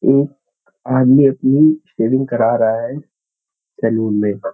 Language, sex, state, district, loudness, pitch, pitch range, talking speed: Hindi, male, Uttarakhand, Uttarkashi, -15 LUFS, 130 Hz, 115-140 Hz, 130 wpm